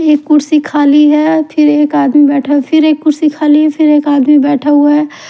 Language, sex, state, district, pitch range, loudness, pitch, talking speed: Hindi, female, Haryana, Charkhi Dadri, 290-305 Hz, -9 LUFS, 295 Hz, 225 wpm